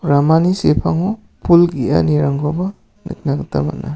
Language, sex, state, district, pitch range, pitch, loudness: Garo, male, Meghalaya, South Garo Hills, 145-180 Hz, 165 Hz, -16 LUFS